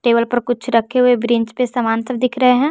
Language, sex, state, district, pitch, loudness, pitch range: Hindi, male, Bihar, West Champaran, 245 Hz, -16 LUFS, 235-250 Hz